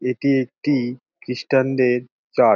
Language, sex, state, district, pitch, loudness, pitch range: Bengali, male, West Bengal, Dakshin Dinajpur, 130 Hz, -21 LUFS, 125-135 Hz